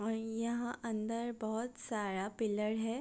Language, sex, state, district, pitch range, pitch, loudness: Hindi, female, Bihar, Gopalganj, 215-235 Hz, 225 Hz, -38 LUFS